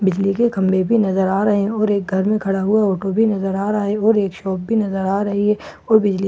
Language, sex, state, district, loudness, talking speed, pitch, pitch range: Hindi, female, Bihar, Katihar, -18 LUFS, 295 wpm, 200 Hz, 195-210 Hz